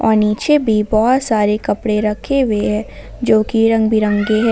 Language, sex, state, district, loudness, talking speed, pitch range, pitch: Hindi, female, Jharkhand, Ranchi, -15 LUFS, 185 wpm, 210-225 Hz, 215 Hz